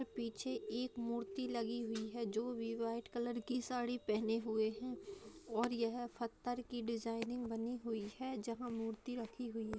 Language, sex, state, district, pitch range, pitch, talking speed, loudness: Hindi, female, Bihar, Jahanabad, 225-245 Hz, 230 Hz, 170 wpm, -42 LUFS